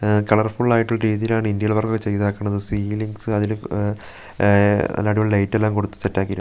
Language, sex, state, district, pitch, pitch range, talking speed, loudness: Malayalam, male, Kerala, Wayanad, 105 Hz, 100-110 Hz, 180 wpm, -20 LUFS